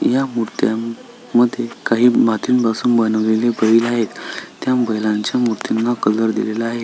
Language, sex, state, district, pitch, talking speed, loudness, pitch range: Marathi, male, Maharashtra, Sindhudurg, 115 Hz, 125 wpm, -17 LUFS, 110-120 Hz